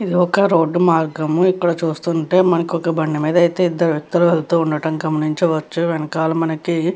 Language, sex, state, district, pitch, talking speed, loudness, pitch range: Telugu, female, Andhra Pradesh, Krishna, 165 Hz, 145 wpm, -17 LUFS, 160-175 Hz